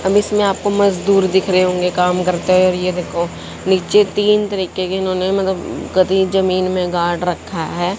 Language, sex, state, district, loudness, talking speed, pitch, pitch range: Hindi, female, Haryana, Jhajjar, -16 LUFS, 175 wpm, 185 Hz, 180-195 Hz